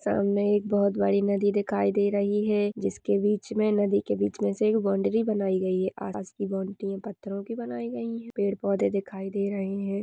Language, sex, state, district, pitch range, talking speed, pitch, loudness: Hindi, female, Jharkhand, Sahebganj, 195-205 Hz, 220 wpm, 200 Hz, -27 LUFS